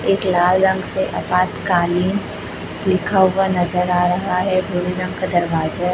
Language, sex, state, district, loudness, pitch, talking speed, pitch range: Hindi, female, Chhattisgarh, Raipur, -18 LUFS, 180 Hz, 150 wpm, 180-190 Hz